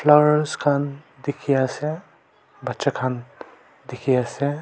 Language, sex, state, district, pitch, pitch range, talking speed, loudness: Nagamese, male, Nagaland, Kohima, 140 Hz, 130-150 Hz, 105 wpm, -22 LUFS